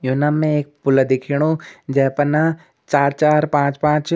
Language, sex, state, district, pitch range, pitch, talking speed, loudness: Garhwali, male, Uttarakhand, Uttarkashi, 140-155 Hz, 150 Hz, 160 wpm, -18 LUFS